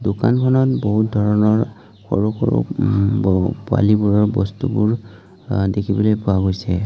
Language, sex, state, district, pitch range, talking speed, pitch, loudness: Assamese, male, Assam, Kamrup Metropolitan, 100-115 Hz, 105 wpm, 105 Hz, -18 LUFS